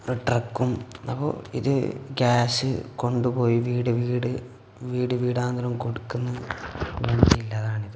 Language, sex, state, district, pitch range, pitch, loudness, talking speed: Malayalam, male, Kerala, Kasaragod, 115-125 Hz, 120 Hz, -25 LUFS, 90 wpm